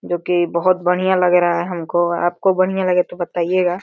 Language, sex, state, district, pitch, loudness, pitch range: Hindi, male, Uttar Pradesh, Deoria, 180 Hz, -17 LUFS, 175-185 Hz